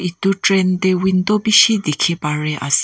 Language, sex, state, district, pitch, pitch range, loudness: Nagamese, female, Nagaland, Kohima, 185 Hz, 150-195 Hz, -15 LUFS